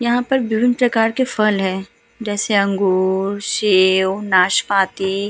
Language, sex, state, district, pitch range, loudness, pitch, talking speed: Hindi, female, Uttar Pradesh, Hamirpur, 190-230 Hz, -17 LUFS, 205 Hz, 125 wpm